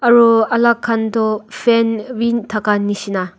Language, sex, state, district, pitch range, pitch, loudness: Nagamese, female, Nagaland, Dimapur, 215-235 Hz, 225 Hz, -16 LUFS